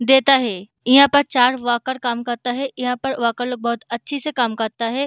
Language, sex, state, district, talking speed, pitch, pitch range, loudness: Hindi, female, Maharashtra, Chandrapur, 225 wpm, 245 Hz, 235-270 Hz, -19 LUFS